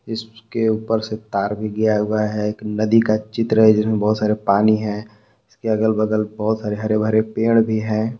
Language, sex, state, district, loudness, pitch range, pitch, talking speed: Hindi, male, Jharkhand, Palamu, -19 LUFS, 105-110 Hz, 110 Hz, 195 wpm